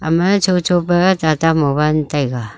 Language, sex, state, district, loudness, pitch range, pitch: Wancho, female, Arunachal Pradesh, Longding, -15 LUFS, 150-180 Hz, 160 Hz